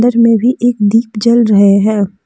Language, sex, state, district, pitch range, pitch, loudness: Hindi, female, Jharkhand, Deoghar, 205-235 Hz, 225 Hz, -10 LUFS